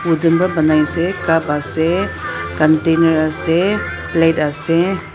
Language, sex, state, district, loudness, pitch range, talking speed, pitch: Nagamese, female, Nagaland, Dimapur, -16 LUFS, 155-170 Hz, 105 wpm, 165 Hz